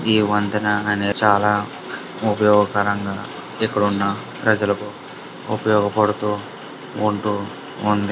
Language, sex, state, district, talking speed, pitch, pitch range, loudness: Telugu, male, Andhra Pradesh, Guntur, 75 wpm, 105 Hz, 100-105 Hz, -20 LUFS